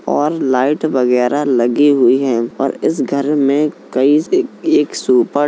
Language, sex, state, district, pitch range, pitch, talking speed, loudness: Hindi, male, Uttar Pradesh, Jalaun, 130-150 Hz, 140 Hz, 155 wpm, -14 LUFS